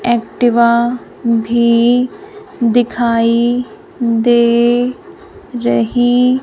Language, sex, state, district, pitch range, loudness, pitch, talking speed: Hindi, female, Punjab, Fazilka, 235-250 Hz, -13 LUFS, 240 Hz, 45 wpm